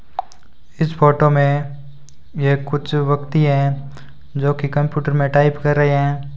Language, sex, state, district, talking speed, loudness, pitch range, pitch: Hindi, male, Rajasthan, Bikaner, 130 wpm, -17 LUFS, 140-145 Hz, 145 Hz